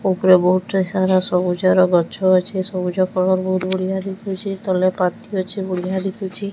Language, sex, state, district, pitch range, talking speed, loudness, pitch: Odia, female, Odisha, Sambalpur, 185-190 Hz, 155 wpm, -19 LUFS, 185 Hz